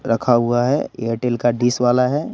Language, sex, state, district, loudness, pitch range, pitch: Hindi, male, Bihar, West Champaran, -18 LUFS, 120-125 Hz, 120 Hz